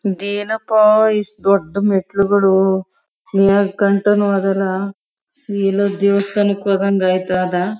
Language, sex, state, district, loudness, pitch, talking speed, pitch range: Kannada, female, Karnataka, Chamarajanagar, -16 LUFS, 200 Hz, 90 wpm, 195-205 Hz